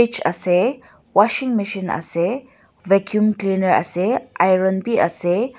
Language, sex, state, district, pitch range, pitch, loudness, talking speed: Nagamese, female, Nagaland, Dimapur, 180-235 Hz, 195 Hz, -19 LUFS, 95 wpm